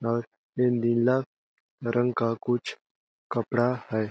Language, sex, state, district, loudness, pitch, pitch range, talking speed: Hindi, male, Chhattisgarh, Balrampur, -27 LUFS, 120 Hz, 115-125 Hz, 115 wpm